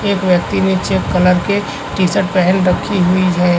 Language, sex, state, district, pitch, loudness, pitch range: Hindi, female, Chhattisgarh, Korba, 185 Hz, -14 LUFS, 180-195 Hz